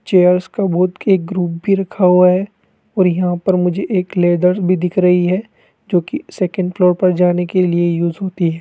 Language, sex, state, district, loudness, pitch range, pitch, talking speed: Hindi, male, Rajasthan, Jaipur, -15 LUFS, 180-190 Hz, 180 Hz, 210 wpm